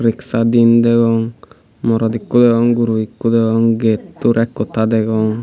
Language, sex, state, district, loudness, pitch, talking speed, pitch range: Chakma, male, Tripura, Unakoti, -15 LUFS, 115 Hz, 130 wpm, 110-115 Hz